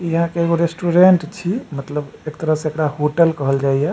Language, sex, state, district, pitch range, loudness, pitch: Maithili, male, Bihar, Supaul, 150-170 Hz, -18 LUFS, 160 Hz